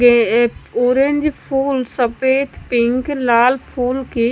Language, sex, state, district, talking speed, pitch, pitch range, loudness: Hindi, female, Punjab, Kapurthala, 125 wpm, 250 Hz, 240-270 Hz, -16 LUFS